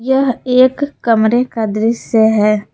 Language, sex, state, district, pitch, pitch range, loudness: Hindi, female, Jharkhand, Palamu, 235 Hz, 220-255 Hz, -13 LUFS